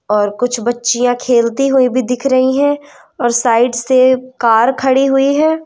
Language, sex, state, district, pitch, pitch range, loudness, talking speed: Hindi, female, Madhya Pradesh, Umaria, 255 Hz, 240-270 Hz, -13 LUFS, 170 wpm